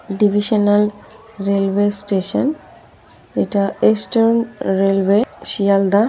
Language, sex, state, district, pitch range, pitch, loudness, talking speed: Bengali, female, West Bengal, North 24 Parganas, 195-220 Hz, 205 Hz, -17 LUFS, 70 wpm